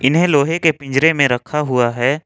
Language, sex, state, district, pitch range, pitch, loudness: Hindi, male, Jharkhand, Ranchi, 130-160 Hz, 145 Hz, -15 LUFS